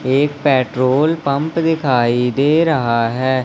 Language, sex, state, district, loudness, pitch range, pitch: Hindi, male, Madhya Pradesh, Katni, -16 LUFS, 130-150 Hz, 135 Hz